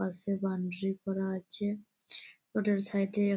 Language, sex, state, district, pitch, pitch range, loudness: Bengali, female, West Bengal, Malda, 195 Hz, 190-205 Hz, -34 LUFS